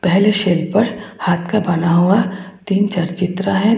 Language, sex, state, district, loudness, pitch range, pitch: Hindi, female, Tripura, West Tripura, -16 LUFS, 180-205 Hz, 195 Hz